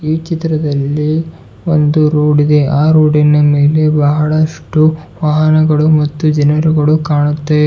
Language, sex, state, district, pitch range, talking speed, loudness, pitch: Kannada, male, Karnataka, Bidar, 150-155 Hz, 100 wpm, -11 LUFS, 150 Hz